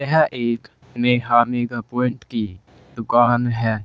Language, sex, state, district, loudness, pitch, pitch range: Hindi, male, Uttar Pradesh, Saharanpur, -20 LUFS, 120 Hz, 115-125 Hz